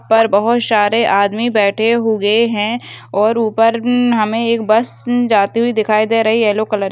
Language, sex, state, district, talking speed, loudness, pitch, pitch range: Hindi, female, Bihar, Begusarai, 200 wpm, -14 LUFS, 225 Hz, 210-230 Hz